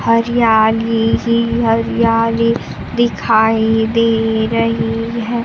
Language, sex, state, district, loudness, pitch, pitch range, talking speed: Hindi, female, Bihar, Kaimur, -14 LUFS, 230 Hz, 225-230 Hz, 75 wpm